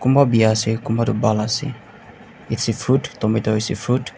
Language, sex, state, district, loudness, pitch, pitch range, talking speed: Nagamese, male, Nagaland, Dimapur, -19 LUFS, 115 Hz, 110-125 Hz, 215 wpm